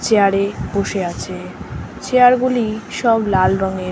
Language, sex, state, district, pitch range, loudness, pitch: Bengali, female, West Bengal, North 24 Parganas, 190-230 Hz, -17 LUFS, 200 Hz